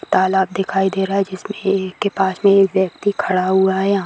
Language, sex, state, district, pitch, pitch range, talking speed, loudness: Hindi, female, Bihar, Samastipur, 190 Hz, 190-195 Hz, 235 wpm, -17 LUFS